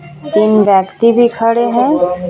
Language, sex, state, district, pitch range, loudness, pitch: Hindi, female, Jharkhand, Ranchi, 185-235 Hz, -12 LUFS, 215 Hz